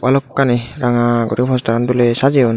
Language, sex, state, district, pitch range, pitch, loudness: Chakma, male, Tripura, Dhalai, 120-130 Hz, 120 Hz, -15 LUFS